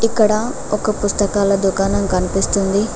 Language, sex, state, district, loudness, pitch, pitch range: Telugu, female, Telangana, Mahabubabad, -17 LUFS, 205 Hz, 195-215 Hz